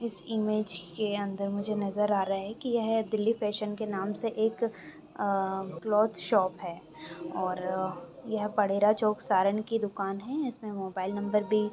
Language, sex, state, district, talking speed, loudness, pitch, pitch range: Bhojpuri, female, Bihar, Saran, 155 wpm, -30 LUFS, 205 Hz, 190-215 Hz